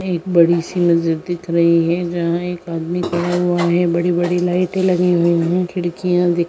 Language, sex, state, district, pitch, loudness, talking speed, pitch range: Hindi, female, Bihar, Madhepura, 175 Hz, -17 LUFS, 195 wpm, 170-180 Hz